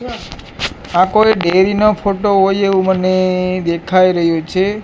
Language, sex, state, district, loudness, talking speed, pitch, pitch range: Gujarati, male, Gujarat, Gandhinagar, -14 LUFS, 135 wpm, 190 Hz, 185-200 Hz